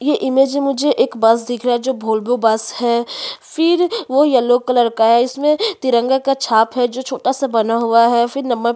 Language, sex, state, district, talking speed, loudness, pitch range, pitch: Hindi, female, Chhattisgarh, Sukma, 240 wpm, -16 LUFS, 235-275 Hz, 245 Hz